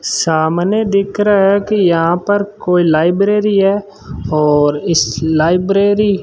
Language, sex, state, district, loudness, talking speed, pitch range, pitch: Hindi, male, Rajasthan, Bikaner, -13 LUFS, 135 wpm, 160-200 Hz, 190 Hz